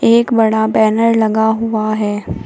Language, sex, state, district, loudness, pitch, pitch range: Hindi, female, Uttar Pradesh, Shamli, -14 LUFS, 220 Hz, 215-225 Hz